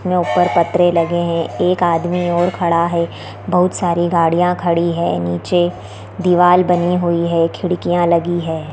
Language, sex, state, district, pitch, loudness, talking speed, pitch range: Hindi, female, Bihar, East Champaran, 175 Hz, -16 LUFS, 165 wpm, 170-180 Hz